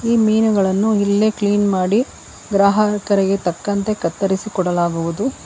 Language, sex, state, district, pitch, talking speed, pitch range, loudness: Kannada, female, Karnataka, Bangalore, 200 Hz, 100 wpm, 190-215 Hz, -17 LUFS